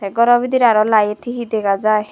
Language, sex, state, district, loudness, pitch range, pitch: Chakma, female, Tripura, Dhalai, -15 LUFS, 210-240 Hz, 220 Hz